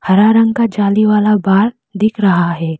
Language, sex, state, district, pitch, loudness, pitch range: Hindi, female, Arunachal Pradesh, Lower Dibang Valley, 210 Hz, -13 LUFS, 195-220 Hz